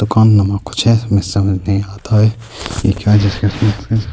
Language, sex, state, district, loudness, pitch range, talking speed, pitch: Urdu, male, Bihar, Saharsa, -14 LUFS, 100-110 Hz, 115 wpm, 105 Hz